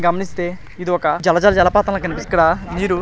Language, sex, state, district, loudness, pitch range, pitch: Telugu, male, Andhra Pradesh, Srikakulam, -17 LUFS, 175-190 Hz, 180 Hz